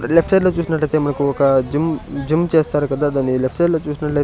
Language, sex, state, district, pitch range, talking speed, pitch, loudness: Telugu, male, Andhra Pradesh, Sri Satya Sai, 140-165 Hz, 225 wpm, 150 Hz, -17 LUFS